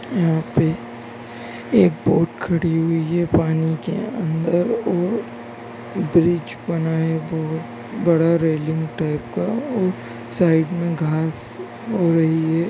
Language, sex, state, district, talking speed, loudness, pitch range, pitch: Hindi, male, Bihar, Begusarai, 125 wpm, -20 LUFS, 150-170 Hz, 160 Hz